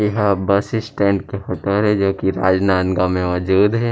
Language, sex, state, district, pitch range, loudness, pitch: Chhattisgarhi, male, Chhattisgarh, Rajnandgaon, 95-105 Hz, -18 LUFS, 100 Hz